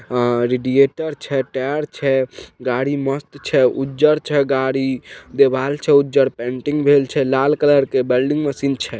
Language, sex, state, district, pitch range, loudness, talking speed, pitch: Maithili, male, Bihar, Samastipur, 130-145 Hz, -18 LUFS, 155 wpm, 135 Hz